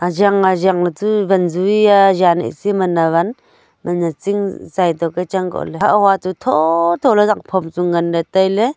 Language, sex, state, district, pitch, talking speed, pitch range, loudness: Wancho, female, Arunachal Pradesh, Longding, 185 Hz, 200 wpm, 175-200 Hz, -15 LUFS